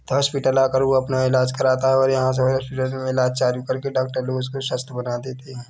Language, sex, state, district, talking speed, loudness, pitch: Hindi, male, Chhattisgarh, Bilaspur, 210 wpm, -21 LUFS, 130 Hz